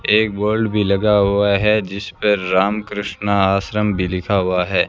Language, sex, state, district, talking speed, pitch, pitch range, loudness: Hindi, male, Rajasthan, Bikaner, 185 wpm, 100 Hz, 95-105 Hz, -17 LUFS